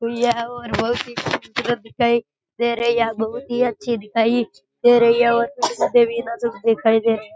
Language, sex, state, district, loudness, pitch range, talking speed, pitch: Rajasthani, male, Rajasthan, Nagaur, -19 LUFS, 225-240 Hz, 145 wpm, 235 Hz